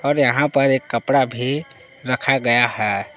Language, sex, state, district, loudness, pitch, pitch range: Hindi, male, Jharkhand, Palamu, -18 LUFS, 135 Hz, 120-140 Hz